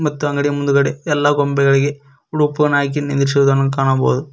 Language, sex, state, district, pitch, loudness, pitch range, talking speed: Kannada, male, Karnataka, Koppal, 140 Hz, -16 LUFS, 140-145 Hz, 125 wpm